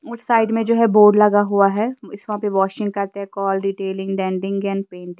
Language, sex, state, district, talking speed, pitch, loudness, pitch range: Hindi, female, Himachal Pradesh, Shimla, 205 wpm, 200 Hz, -18 LUFS, 195-210 Hz